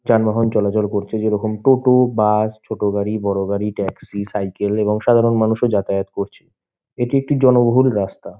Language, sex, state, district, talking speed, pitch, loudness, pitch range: Bengali, male, West Bengal, Malda, 150 wpm, 105 Hz, -18 LUFS, 100-120 Hz